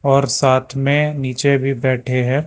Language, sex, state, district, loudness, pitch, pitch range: Hindi, male, Karnataka, Bangalore, -17 LUFS, 135 Hz, 130-140 Hz